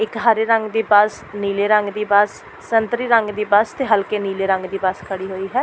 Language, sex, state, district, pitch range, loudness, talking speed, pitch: Punjabi, female, Delhi, New Delhi, 200-225 Hz, -18 LUFS, 235 wpm, 210 Hz